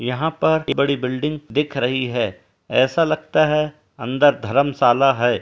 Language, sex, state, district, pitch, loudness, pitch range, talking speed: Hindi, male, Uttar Pradesh, Etah, 135 Hz, -19 LUFS, 120-150 Hz, 155 wpm